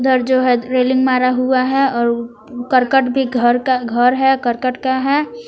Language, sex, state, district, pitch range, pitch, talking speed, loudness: Hindi, female, Jharkhand, Palamu, 245-265 Hz, 255 Hz, 185 wpm, -15 LUFS